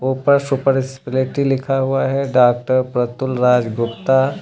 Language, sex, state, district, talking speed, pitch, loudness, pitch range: Hindi, male, Uttar Pradesh, Lucknow, 135 wpm, 130 Hz, -17 LUFS, 125-135 Hz